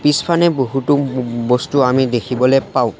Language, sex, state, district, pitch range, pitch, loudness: Assamese, male, Assam, Sonitpur, 125-145 Hz, 130 Hz, -16 LUFS